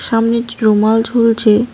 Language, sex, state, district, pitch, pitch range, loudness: Bengali, female, West Bengal, Cooch Behar, 225 Hz, 220-235 Hz, -13 LUFS